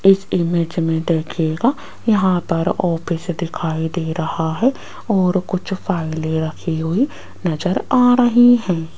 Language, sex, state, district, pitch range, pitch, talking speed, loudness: Hindi, female, Rajasthan, Jaipur, 165-195 Hz, 175 Hz, 135 wpm, -18 LUFS